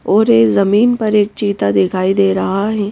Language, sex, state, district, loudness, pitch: Hindi, female, Madhya Pradesh, Bhopal, -13 LUFS, 200 Hz